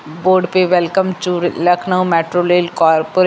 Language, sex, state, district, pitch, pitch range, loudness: Hindi, female, Uttar Pradesh, Lucknow, 175 Hz, 170-185 Hz, -14 LUFS